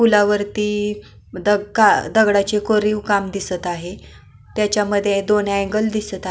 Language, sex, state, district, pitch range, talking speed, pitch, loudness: Marathi, female, Maharashtra, Pune, 200-210 Hz, 115 wpm, 205 Hz, -18 LUFS